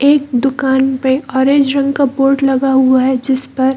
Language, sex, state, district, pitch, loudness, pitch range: Hindi, female, Bihar, Samastipur, 265 Hz, -13 LUFS, 265-275 Hz